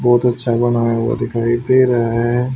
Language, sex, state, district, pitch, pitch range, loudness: Hindi, male, Haryana, Jhajjar, 120 Hz, 115-125 Hz, -16 LUFS